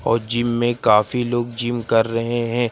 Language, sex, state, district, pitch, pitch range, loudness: Hindi, male, Uttar Pradesh, Lucknow, 120 Hz, 115-120 Hz, -19 LUFS